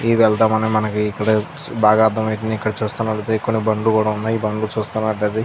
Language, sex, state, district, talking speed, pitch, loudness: Telugu, male, Andhra Pradesh, Krishna, 200 wpm, 110 Hz, -18 LUFS